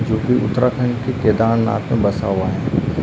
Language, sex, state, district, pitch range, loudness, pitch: Hindi, male, Uttarakhand, Uttarkashi, 115-125 Hz, -18 LUFS, 115 Hz